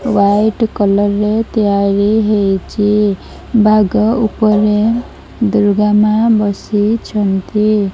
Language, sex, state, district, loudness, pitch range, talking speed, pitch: Odia, female, Odisha, Malkangiri, -13 LUFS, 205-215 Hz, 70 wpm, 210 Hz